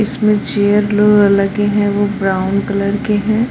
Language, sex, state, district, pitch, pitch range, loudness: Hindi, female, Jharkhand, Palamu, 205 Hz, 200-210 Hz, -14 LUFS